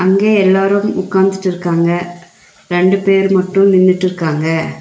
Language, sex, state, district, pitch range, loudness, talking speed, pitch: Tamil, female, Tamil Nadu, Nilgiris, 175-195 Hz, -13 LUFS, 85 wpm, 185 Hz